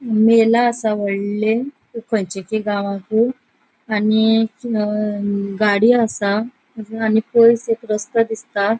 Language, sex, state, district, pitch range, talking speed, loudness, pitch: Konkani, female, Goa, North and South Goa, 210-230 Hz, 95 wpm, -18 LUFS, 220 Hz